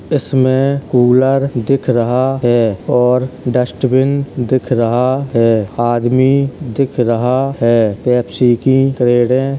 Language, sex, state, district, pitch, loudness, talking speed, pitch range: Hindi, male, Uttar Pradesh, Hamirpur, 125 Hz, -14 LUFS, 110 wpm, 120-135 Hz